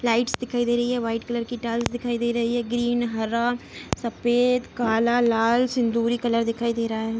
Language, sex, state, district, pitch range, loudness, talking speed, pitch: Hindi, female, Bihar, Begusarai, 230-240 Hz, -24 LUFS, 200 wpm, 235 Hz